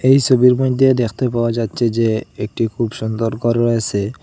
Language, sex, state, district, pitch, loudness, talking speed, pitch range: Bengali, male, Assam, Hailakandi, 115 Hz, -17 LUFS, 170 wpm, 110-125 Hz